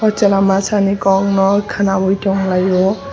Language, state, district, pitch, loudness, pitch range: Kokborok, Tripura, West Tripura, 195 Hz, -14 LUFS, 195-200 Hz